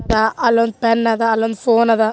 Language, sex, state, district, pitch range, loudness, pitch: Kannada, female, Karnataka, Gulbarga, 225-230 Hz, -16 LUFS, 230 Hz